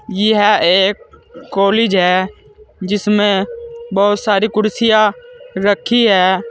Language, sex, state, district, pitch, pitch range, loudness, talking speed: Hindi, male, Uttar Pradesh, Saharanpur, 210 Hz, 195-230 Hz, -14 LUFS, 90 wpm